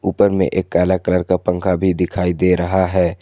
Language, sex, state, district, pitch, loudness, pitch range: Hindi, male, Jharkhand, Garhwa, 90 Hz, -17 LUFS, 90-95 Hz